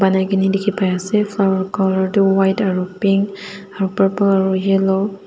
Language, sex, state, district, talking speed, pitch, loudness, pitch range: Nagamese, female, Nagaland, Dimapur, 135 wpm, 195 Hz, -17 LUFS, 190-200 Hz